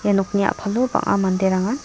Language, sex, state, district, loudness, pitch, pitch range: Garo, female, Meghalaya, South Garo Hills, -20 LUFS, 200 Hz, 190-215 Hz